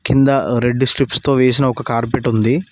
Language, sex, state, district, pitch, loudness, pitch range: Telugu, male, Telangana, Mahabubabad, 130 Hz, -16 LUFS, 120-135 Hz